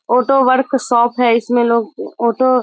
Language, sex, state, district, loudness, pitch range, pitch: Hindi, female, Bihar, Muzaffarpur, -14 LUFS, 235-255 Hz, 245 Hz